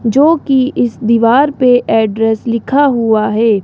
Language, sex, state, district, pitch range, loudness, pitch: Hindi, male, Rajasthan, Jaipur, 225-265 Hz, -12 LUFS, 235 Hz